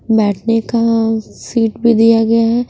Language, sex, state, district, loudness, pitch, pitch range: Hindi, female, Punjab, Pathankot, -14 LUFS, 225 Hz, 225-230 Hz